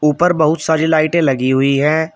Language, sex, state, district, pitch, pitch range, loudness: Hindi, male, Uttar Pradesh, Shamli, 155 Hz, 145-160 Hz, -14 LUFS